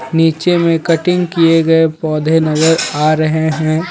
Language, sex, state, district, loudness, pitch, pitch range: Hindi, male, Jharkhand, Ranchi, -13 LUFS, 160 Hz, 155-165 Hz